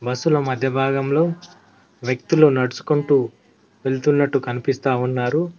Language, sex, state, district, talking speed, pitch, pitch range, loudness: Telugu, male, Telangana, Mahabubabad, 85 wpm, 135 Hz, 125-150 Hz, -20 LUFS